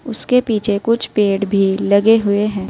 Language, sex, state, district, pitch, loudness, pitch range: Hindi, female, Uttar Pradesh, Saharanpur, 210 Hz, -15 LUFS, 200-225 Hz